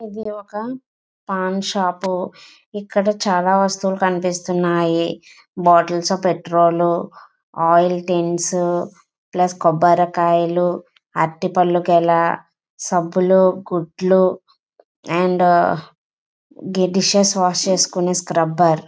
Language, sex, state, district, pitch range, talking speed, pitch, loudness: Telugu, female, Andhra Pradesh, Visakhapatnam, 175-190 Hz, 85 wpm, 180 Hz, -18 LUFS